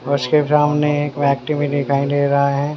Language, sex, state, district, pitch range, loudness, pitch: Hindi, male, Haryana, Jhajjar, 140-150 Hz, -17 LUFS, 145 Hz